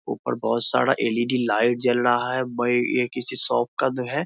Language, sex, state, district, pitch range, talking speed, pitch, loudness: Hindi, male, Bihar, Muzaffarpur, 120-125 Hz, 210 wpm, 120 Hz, -23 LUFS